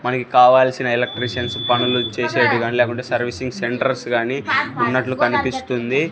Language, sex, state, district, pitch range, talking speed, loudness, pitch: Telugu, male, Andhra Pradesh, Sri Satya Sai, 120-130 Hz, 120 wpm, -18 LUFS, 125 Hz